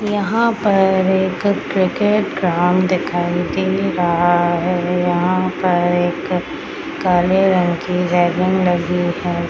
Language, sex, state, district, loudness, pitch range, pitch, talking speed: Hindi, female, Bihar, Madhepura, -17 LUFS, 175-190 Hz, 180 Hz, 115 wpm